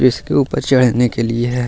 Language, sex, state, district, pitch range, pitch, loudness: Hindi, male, Bihar, Gaya, 120-130 Hz, 125 Hz, -15 LUFS